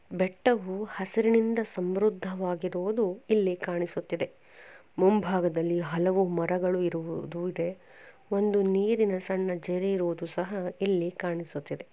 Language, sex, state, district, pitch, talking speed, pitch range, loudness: Kannada, female, Karnataka, Chamarajanagar, 185 Hz, 95 wpm, 175-205 Hz, -29 LUFS